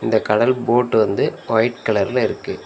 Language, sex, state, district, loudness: Tamil, male, Tamil Nadu, Nilgiris, -18 LUFS